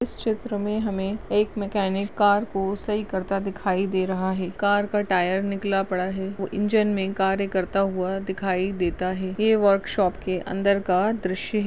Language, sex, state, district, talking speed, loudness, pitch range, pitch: Hindi, female, Uttar Pradesh, Budaun, 180 wpm, -24 LUFS, 190-205 Hz, 195 Hz